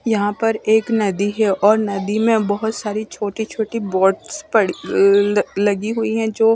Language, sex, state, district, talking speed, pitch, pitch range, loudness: Hindi, female, Chandigarh, Chandigarh, 165 wpm, 215 Hz, 205-225 Hz, -18 LUFS